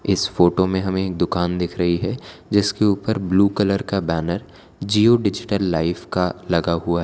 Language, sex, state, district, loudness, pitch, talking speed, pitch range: Hindi, male, Gujarat, Valsad, -20 LUFS, 95 Hz, 185 wpm, 85-100 Hz